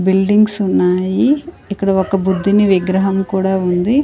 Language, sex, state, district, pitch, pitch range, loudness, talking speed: Telugu, female, Andhra Pradesh, Sri Satya Sai, 195 Hz, 190-205 Hz, -15 LUFS, 120 wpm